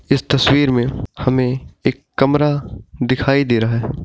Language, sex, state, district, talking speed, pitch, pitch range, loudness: Hindi, male, Bihar, Bhagalpur, 150 wpm, 130 Hz, 120-140 Hz, -17 LUFS